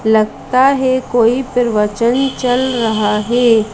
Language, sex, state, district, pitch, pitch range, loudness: Hindi, female, Madhya Pradesh, Bhopal, 240 Hz, 220-255 Hz, -14 LUFS